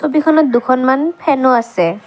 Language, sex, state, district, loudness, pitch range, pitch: Assamese, female, Assam, Kamrup Metropolitan, -13 LUFS, 240-305 Hz, 260 Hz